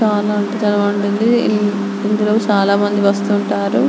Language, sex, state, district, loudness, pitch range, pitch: Telugu, female, Andhra Pradesh, Anantapur, -16 LUFS, 205-210 Hz, 205 Hz